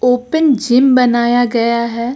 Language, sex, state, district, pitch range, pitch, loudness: Hindi, female, Uttar Pradesh, Lucknow, 235-250 Hz, 245 Hz, -13 LUFS